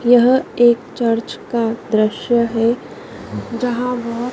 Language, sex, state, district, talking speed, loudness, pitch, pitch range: Hindi, female, Madhya Pradesh, Dhar, 110 wpm, -17 LUFS, 235 Hz, 230-245 Hz